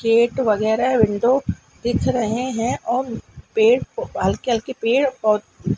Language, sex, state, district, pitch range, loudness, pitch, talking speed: Hindi, female, Madhya Pradesh, Dhar, 225-260 Hz, -20 LUFS, 240 Hz, 115 wpm